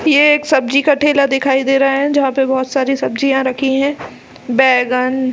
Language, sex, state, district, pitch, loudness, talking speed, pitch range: Hindi, female, Chhattisgarh, Balrampur, 270 Hz, -14 LUFS, 190 wpm, 265-280 Hz